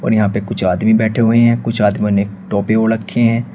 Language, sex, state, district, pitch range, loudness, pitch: Hindi, male, Uttar Pradesh, Shamli, 100-115 Hz, -15 LUFS, 110 Hz